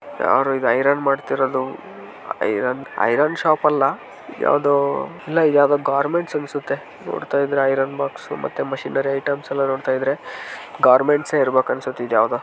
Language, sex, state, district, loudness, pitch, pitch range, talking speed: Kannada, male, Karnataka, Shimoga, -20 LUFS, 140 Hz, 135-145 Hz, 115 wpm